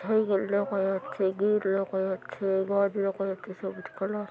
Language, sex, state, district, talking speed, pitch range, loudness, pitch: Bengali, male, West Bengal, North 24 Parganas, 165 wpm, 190-200 Hz, -29 LUFS, 195 Hz